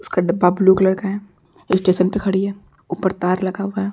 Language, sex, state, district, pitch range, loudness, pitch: Hindi, female, Uttar Pradesh, Deoria, 185-195 Hz, -18 LUFS, 190 Hz